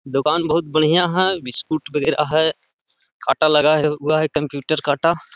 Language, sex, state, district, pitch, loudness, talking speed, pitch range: Hindi, male, Bihar, Gaya, 155 Hz, -18 LUFS, 145 wpm, 150-160 Hz